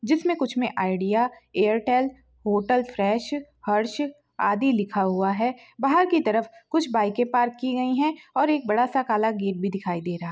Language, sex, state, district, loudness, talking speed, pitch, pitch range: Hindi, female, Bihar, Begusarai, -24 LUFS, 185 wpm, 240 Hz, 210-275 Hz